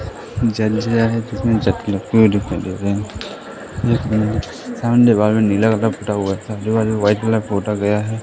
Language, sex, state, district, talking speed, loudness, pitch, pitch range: Hindi, male, Madhya Pradesh, Katni, 35 wpm, -18 LUFS, 110 Hz, 100-110 Hz